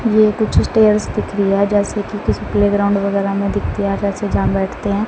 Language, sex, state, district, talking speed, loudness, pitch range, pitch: Hindi, female, Haryana, Rohtak, 225 wpm, -16 LUFS, 200-210 Hz, 205 Hz